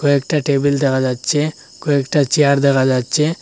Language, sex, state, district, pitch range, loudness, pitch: Bengali, male, Assam, Hailakandi, 135-150 Hz, -16 LUFS, 140 Hz